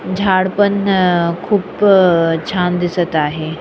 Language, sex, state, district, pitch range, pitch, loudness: Marathi, female, Maharashtra, Sindhudurg, 170-195 Hz, 180 Hz, -14 LUFS